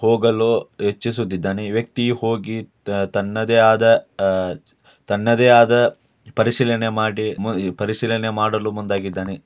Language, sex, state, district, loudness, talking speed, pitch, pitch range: Kannada, male, Karnataka, Dharwad, -19 LUFS, 95 wpm, 110 Hz, 100-115 Hz